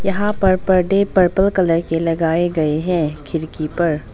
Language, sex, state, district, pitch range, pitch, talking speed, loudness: Hindi, female, Arunachal Pradesh, Longding, 160-190 Hz, 170 Hz, 160 wpm, -17 LUFS